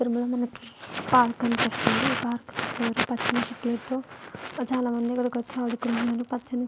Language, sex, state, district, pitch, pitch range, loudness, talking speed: Telugu, female, Andhra Pradesh, Guntur, 245 Hz, 235-250 Hz, -27 LUFS, 115 wpm